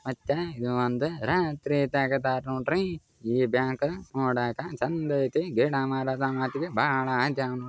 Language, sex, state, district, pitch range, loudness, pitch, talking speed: Kannada, male, Karnataka, Raichur, 130-145 Hz, -28 LUFS, 135 Hz, 115 wpm